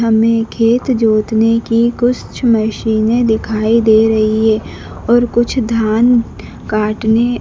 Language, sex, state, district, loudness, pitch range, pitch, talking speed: Hindi, female, Madhya Pradesh, Dhar, -13 LUFS, 220-235 Hz, 225 Hz, 115 wpm